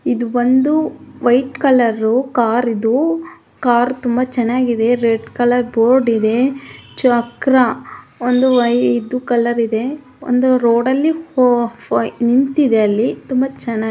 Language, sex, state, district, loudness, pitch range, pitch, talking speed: Kannada, female, Karnataka, Mysore, -15 LUFS, 235-260 Hz, 245 Hz, 110 wpm